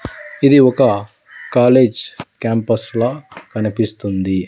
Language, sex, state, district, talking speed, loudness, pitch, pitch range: Telugu, male, Andhra Pradesh, Sri Satya Sai, 80 wpm, -15 LUFS, 115 Hz, 105-125 Hz